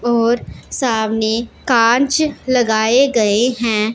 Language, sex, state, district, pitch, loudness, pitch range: Hindi, female, Punjab, Pathankot, 230 Hz, -15 LUFS, 220-250 Hz